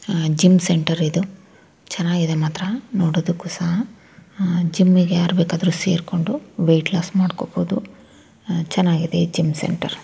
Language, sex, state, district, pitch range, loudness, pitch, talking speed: Kannada, female, Karnataka, Raichur, 170-190 Hz, -20 LUFS, 175 Hz, 125 wpm